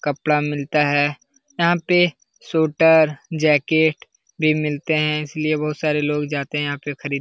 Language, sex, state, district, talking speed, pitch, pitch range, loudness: Hindi, male, Bihar, Lakhisarai, 185 wpm, 150 Hz, 145-160 Hz, -19 LUFS